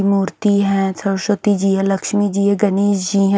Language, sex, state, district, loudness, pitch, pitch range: Hindi, female, Haryana, Charkhi Dadri, -17 LUFS, 200 Hz, 195-205 Hz